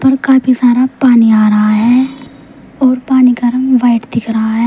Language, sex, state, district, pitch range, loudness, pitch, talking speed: Hindi, female, Uttar Pradesh, Saharanpur, 230-260 Hz, -10 LUFS, 250 Hz, 180 wpm